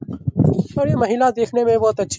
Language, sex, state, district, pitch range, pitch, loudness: Hindi, male, Bihar, Jahanabad, 220-240 Hz, 230 Hz, -18 LUFS